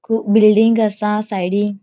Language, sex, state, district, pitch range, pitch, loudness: Konkani, female, Goa, North and South Goa, 205-220 Hz, 210 Hz, -15 LUFS